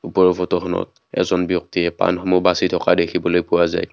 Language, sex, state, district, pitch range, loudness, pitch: Assamese, male, Assam, Kamrup Metropolitan, 85-90 Hz, -19 LUFS, 90 Hz